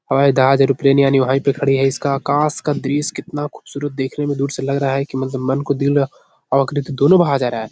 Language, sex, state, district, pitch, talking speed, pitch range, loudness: Hindi, male, Bihar, Jahanabad, 140 Hz, 255 wpm, 135-145 Hz, -17 LUFS